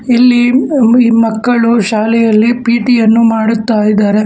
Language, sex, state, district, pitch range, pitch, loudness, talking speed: Kannada, male, Karnataka, Bangalore, 220-240 Hz, 230 Hz, -10 LUFS, 100 wpm